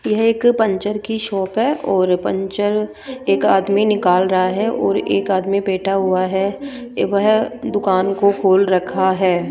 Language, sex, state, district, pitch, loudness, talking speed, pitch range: Hindi, female, Rajasthan, Jaipur, 195 Hz, -17 LUFS, 160 wpm, 190-215 Hz